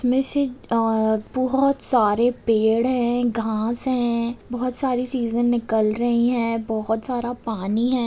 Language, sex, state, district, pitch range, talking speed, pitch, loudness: Hindi, female, Bihar, Begusarai, 225-250 Hz, 150 wpm, 240 Hz, -20 LUFS